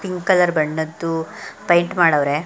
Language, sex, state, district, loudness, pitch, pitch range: Kannada, female, Karnataka, Belgaum, -18 LUFS, 165 Hz, 160-180 Hz